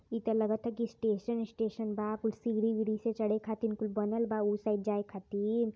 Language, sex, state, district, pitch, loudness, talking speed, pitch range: Hindi, female, Uttar Pradesh, Varanasi, 220 Hz, -34 LUFS, 200 wpm, 210-225 Hz